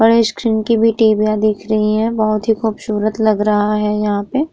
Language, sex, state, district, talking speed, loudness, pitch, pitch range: Hindi, female, Uttar Pradesh, Muzaffarnagar, 225 wpm, -15 LUFS, 215 Hz, 210-225 Hz